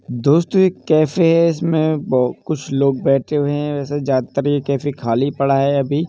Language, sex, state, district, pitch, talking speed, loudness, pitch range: Hindi, male, Uttar Pradesh, Jalaun, 145 Hz, 195 wpm, -17 LUFS, 135-155 Hz